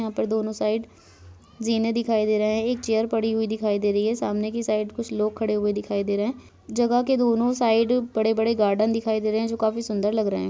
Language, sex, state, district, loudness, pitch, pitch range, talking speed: Hindi, female, Bihar, Samastipur, -24 LUFS, 220 Hz, 210-230 Hz, 240 wpm